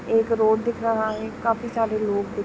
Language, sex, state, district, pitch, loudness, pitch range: Hindi, female, Jharkhand, Jamtara, 220 Hz, -23 LUFS, 215-230 Hz